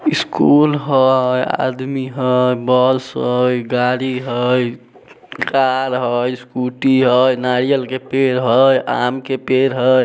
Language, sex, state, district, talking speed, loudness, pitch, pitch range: Maithili, male, Bihar, Samastipur, 130 wpm, -16 LUFS, 130 Hz, 125-130 Hz